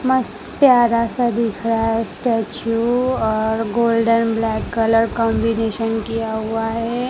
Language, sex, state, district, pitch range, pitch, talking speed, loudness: Hindi, female, Gujarat, Gandhinagar, 225-235 Hz, 230 Hz, 125 wpm, -18 LUFS